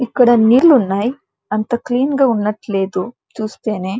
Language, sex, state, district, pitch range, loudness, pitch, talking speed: Telugu, female, Andhra Pradesh, Krishna, 210-250 Hz, -15 LUFS, 230 Hz, 135 wpm